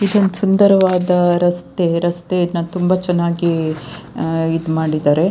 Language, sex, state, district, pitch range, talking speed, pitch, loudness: Kannada, female, Karnataka, Dakshina Kannada, 165-185 Hz, 90 wpm, 175 Hz, -16 LUFS